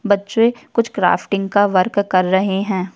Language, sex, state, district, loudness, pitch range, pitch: Hindi, female, Uttar Pradesh, Jyotiba Phule Nagar, -17 LUFS, 190-210 Hz, 200 Hz